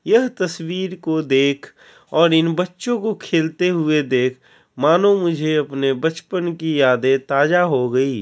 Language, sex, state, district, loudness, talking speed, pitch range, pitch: Hindi, male, Bihar, Kishanganj, -18 LUFS, 145 wpm, 140-180 Hz, 160 Hz